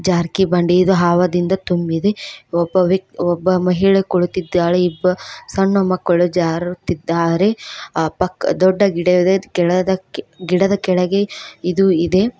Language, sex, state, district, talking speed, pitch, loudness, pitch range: Kannada, female, Karnataka, Koppal, 115 wpm, 180 Hz, -17 LUFS, 175-190 Hz